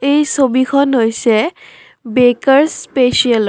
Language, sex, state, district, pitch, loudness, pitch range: Assamese, female, Assam, Kamrup Metropolitan, 260 Hz, -13 LUFS, 240-280 Hz